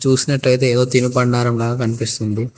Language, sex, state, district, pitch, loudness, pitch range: Telugu, male, Telangana, Hyderabad, 125 Hz, -17 LUFS, 115-125 Hz